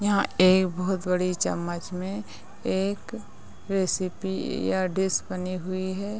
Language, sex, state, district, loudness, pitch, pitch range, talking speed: Hindi, female, Bihar, Madhepura, -27 LUFS, 185 Hz, 180-190 Hz, 125 wpm